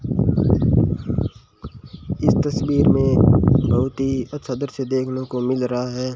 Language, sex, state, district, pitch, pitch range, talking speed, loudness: Hindi, male, Rajasthan, Bikaner, 130 Hz, 125-135 Hz, 115 wpm, -19 LUFS